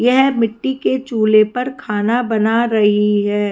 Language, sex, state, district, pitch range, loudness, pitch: Hindi, female, Haryana, Rohtak, 210-245 Hz, -16 LUFS, 225 Hz